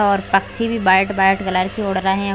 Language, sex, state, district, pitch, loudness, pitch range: Hindi, female, Chhattisgarh, Bilaspur, 195 Hz, -17 LUFS, 190-200 Hz